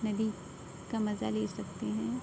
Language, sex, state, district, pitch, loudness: Hindi, female, Uttar Pradesh, Budaun, 165 Hz, -35 LUFS